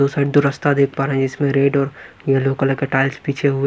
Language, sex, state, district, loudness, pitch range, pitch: Hindi, male, Punjab, Pathankot, -18 LUFS, 135-140 Hz, 140 Hz